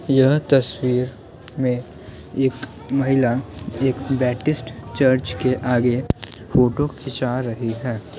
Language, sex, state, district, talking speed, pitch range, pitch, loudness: Hindi, male, Bihar, Muzaffarpur, 95 wpm, 120-135 Hz, 125 Hz, -21 LUFS